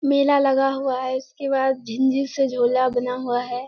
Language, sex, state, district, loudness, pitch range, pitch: Hindi, female, Bihar, Kishanganj, -21 LUFS, 250-270 Hz, 265 Hz